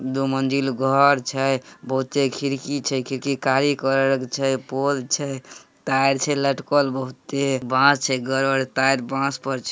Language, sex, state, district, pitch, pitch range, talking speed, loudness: Hindi, male, Bihar, Samastipur, 135 Hz, 130-140 Hz, 160 wpm, -21 LUFS